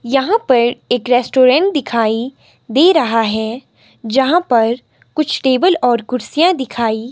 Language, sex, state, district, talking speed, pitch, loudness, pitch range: Hindi, female, Himachal Pradesh, Shimla, 125 wpm, 250 Hz, -14 LUFS, 235-295 Hz